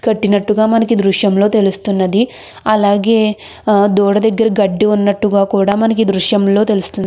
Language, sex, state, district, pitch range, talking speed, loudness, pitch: Telugu, female, Andhra Pradesh, Krishna, 200-220 Hz, 110 wpm, -13 LUFS, 205 Hz